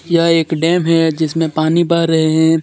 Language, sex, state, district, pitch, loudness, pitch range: Hindi, male, Jharkhand, Deoghar, 165 Hz, -14 LUFS, 160-170 Hz